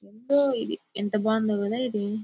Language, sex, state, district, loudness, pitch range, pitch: Telugu, female, Andhra Pradesh, Anantapur, -26 LUFS, 210-240 Hz, 215 Hz